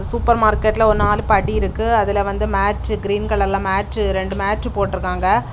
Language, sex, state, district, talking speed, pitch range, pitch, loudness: Tamil, female, Tamil Nadu, Kanyakumari, 165 wpm, 195-215 Hz, 200 Hz, -18 LUFS